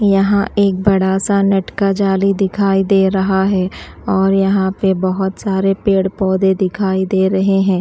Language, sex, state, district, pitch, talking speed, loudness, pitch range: Hindi, female, Bihar, Kaimur, 195 Hz, 160 wpm, -15 LUFS, 190-195 Hz